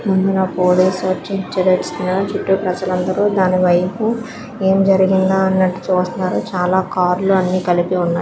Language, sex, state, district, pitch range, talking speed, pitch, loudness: Telugu, female, Andhra Pradesh, Visakhapatnam, 180-190 Hz, 130 wpm, 185 Hz, -16 LUFS